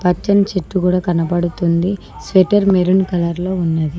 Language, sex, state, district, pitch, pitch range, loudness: Telugu, female, Telangana, Mahabubabad, 180 Hz, 175-190 Hz, -16 LUFS